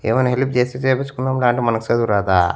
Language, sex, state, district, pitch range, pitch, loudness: Telugu, male, Andhra Pradesh, Annamaya, 115-130 Hz, 125 Hz, -18 LUFS